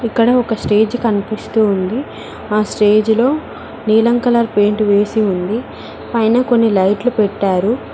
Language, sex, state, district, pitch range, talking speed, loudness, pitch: Telugu, female, Telangana, Mahabubabad, 210-235 Hz, 120 wpm, -15 LUFS, 220 Hz